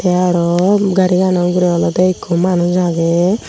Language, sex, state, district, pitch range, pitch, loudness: Chakma, female, Tripura, Unakoti, 175-185 Hz, 180 Hz, -14 LUFS